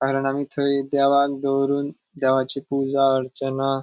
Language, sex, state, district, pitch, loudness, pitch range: Konkani, male, Goa, North and South Goa, 140 Hz, -22 LUFS, 135-140 Hz